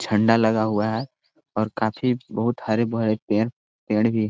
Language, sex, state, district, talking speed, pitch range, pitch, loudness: Hindi, male, Chhattisgarh, Korba, 140 wpm, 110-115 Hz, 110 Hz, -23 LUFS